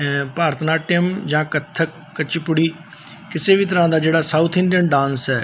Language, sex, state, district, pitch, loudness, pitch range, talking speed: Punjabi, male, Punjab, Fazilka, 160 Hz, -17 LUFS, 155-170 Hz, 165 wpm